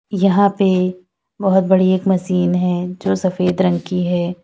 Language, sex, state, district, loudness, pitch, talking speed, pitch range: Hindi, female, Uttar Pradesh, Lalitpur, -17 LUFS, 185 Hz, 160 wpm, 180-190 Hz